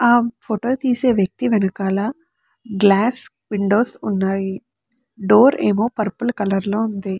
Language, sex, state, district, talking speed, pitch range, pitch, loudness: Telugu, female, Andhra Pradesh, Chittoor, 115 wpm, 200-245 Hz, 220 Hz, -19 LUFS